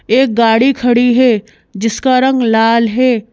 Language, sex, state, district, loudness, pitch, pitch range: Hindi, female, Madhya Pradesh, Bhopal, -12 LUFS, 240 Hz, 225-255 Hz